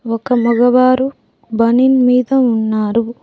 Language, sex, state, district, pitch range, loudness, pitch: Telugu, female, Telangana, Mahabubabad, 230-255 Hz, -13 LUFS, 245 Hz